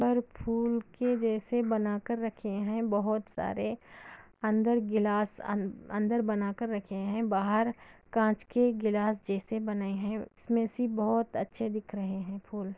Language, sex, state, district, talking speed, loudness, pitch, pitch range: Hindi, female, Andhra Pradesh, Anantapur, 140 wpm, -31 LUFS, 215 Hz, 205-230 Hz